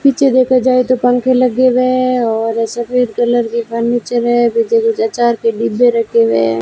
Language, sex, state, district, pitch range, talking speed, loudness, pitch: Hindi, female, Rajasthan, Bikaner, 230-255 Hz, 200 wpm, -13 LUFS, 240 Hz